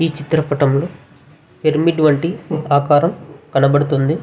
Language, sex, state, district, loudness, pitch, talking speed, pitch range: Telugu, male, Andhra Pradesh, Visakhapatnam, -16 LUFS, 150 Hz, 85 wpm, 145-160 Hz